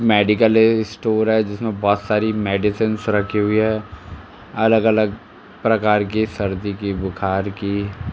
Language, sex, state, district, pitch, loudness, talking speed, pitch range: Hindi, male, Uttar Pradesh, Jalaun, 105 Hz, -19 LUFS, 120 wpm, 100-110 Hz